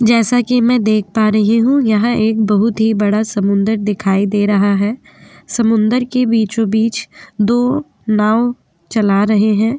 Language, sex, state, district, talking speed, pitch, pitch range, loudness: Hindi, female, Uttar Pradesh, Jyotiba Phule Nagar, 160 wpm, 220 Hz, 210-235 Hz, -14 LUFS